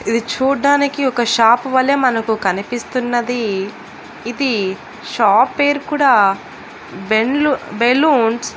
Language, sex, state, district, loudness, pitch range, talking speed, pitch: Telugu, female, Andhra Pradesh, Annamaya, -15 LUFS, 225-275 Hz, 100 wpm, 240 Hz